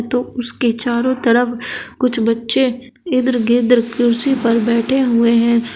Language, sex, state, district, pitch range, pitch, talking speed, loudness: Hindi, female, Uttar Pradesh, Shamli, 235-255 Hz, 240 Hz, 135 wpm, -15 LUFS